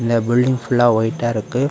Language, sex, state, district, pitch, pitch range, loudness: Tamil, male, Tamil Nadu, Kanyakumari, 120 Hz, 115-125 Hz, -17 LUFS